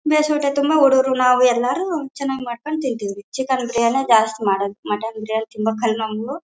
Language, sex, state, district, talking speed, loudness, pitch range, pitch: Kannada, female, Karnataka, Bellary, 150 wpm, -19 LUFS, 220-275 Hz, 250 Hz